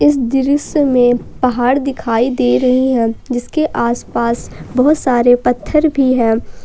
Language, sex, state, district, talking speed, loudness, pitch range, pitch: Hindi, female, Jharkhand, Ranchi, 135 wpm, -14 LUFS, 240-275 Hz, 250 Hz